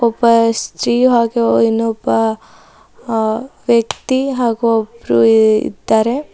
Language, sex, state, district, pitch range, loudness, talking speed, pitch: Kannada, female, Karnataka, Bidar, 220-235 Hz, -14 LUFS, 85 wpm, 230 Hz